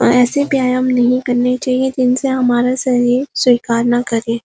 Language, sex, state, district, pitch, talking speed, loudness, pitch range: Hindi, female, Uttarakhand, Uttarkashi, 250 Hz, 160 wpm, -14 LUFS, 245-255 Hz